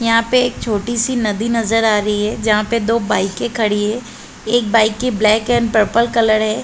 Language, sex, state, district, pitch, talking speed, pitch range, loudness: Hindi, female, Chhattisgarh, Bilaspur, 225 Hz, 215 wpm, 215-235 Hz, -16 LUFS